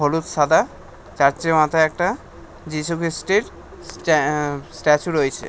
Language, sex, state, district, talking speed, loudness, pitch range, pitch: Bengali, male, West Bengal, North 24 Parganas, 110 wpm, -20 LUFS, 150-165 Hz, 155 Hz